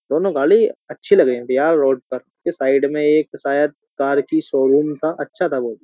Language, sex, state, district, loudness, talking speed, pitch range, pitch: Hindi, male, Uttar Pradesh, Jyotiba Phule Nagar, -18 LUFS, 215 wpm, 135-160 Hz, 145 Hz